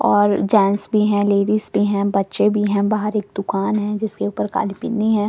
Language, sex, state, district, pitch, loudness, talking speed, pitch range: Hindi, female, Delhi, New Delhi, 205 Hz, -19 LUFS, 250 wpm, 200-210 Hz